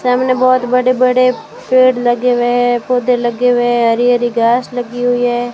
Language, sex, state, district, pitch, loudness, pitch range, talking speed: Hindi, female, Rajasthan, Bikaner, 245 Hz, -13 LUFS, 240-250 Hz, 185 wpm